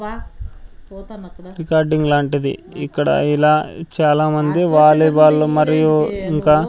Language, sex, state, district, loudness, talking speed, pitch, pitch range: Telugu, male, Andhra Pradesh, Sri Satya Sai, -15 LUFS, 80 wpm, 155 Hz, 150-170 Hz